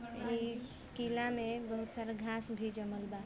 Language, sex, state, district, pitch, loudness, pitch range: Bhojpuri, female, Uttar Pradesh, Varanasi, 230 Hz, -40 LUFS, 220-235 Hz